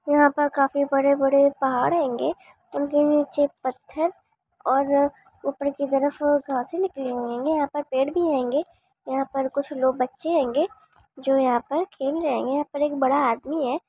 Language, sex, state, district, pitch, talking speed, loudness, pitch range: Hindi, female, Andhra Pradesh, Chittoor, 280 Hz, 175 wpm, -23 LUFS, 270-295 Hz